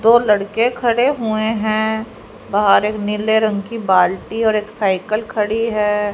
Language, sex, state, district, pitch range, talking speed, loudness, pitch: Hindi, female, Haryana, Rohtak, 210-225 Hz, 155 wpm, -17 LUFS, 215 Hz